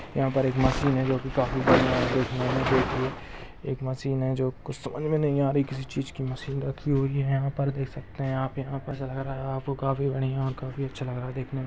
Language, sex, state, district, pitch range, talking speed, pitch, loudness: Hindi, male, Chhattisgarh, Rajnandgaon, 130-135 Hz, 195 wpm, 135 Hz, -27 LUFS